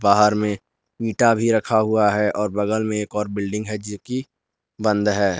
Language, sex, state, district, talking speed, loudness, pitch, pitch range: Hindi, male, Jharkhand, Garhwa, 200 wpm, -21 LUFS, 105 Hz, 105-110 Hz